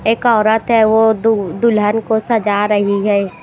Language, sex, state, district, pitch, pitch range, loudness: Hindi, female, Himachal Pradesh, Shimla, 220 Hz, 205-225 Hz, -14 LUFS